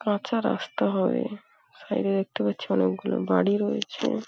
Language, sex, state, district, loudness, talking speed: Bengali, female, West Bengal, Paschim Medinipur, -26 LUFS, 140 wpm